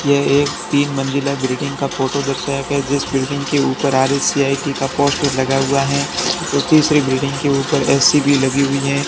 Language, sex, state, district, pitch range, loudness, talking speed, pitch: Hindi, male, Rajasthan, Barmer, 135-140 Hz, -16 LUFS, 200 wpm, 140 Hz